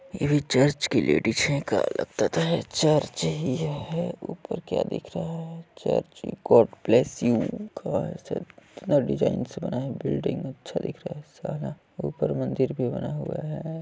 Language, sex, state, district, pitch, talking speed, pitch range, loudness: Hindi, male, Chhattisgarh, Balrampur, 160 Hz, 155 wpm, 145-180 Hz, -26 LUFS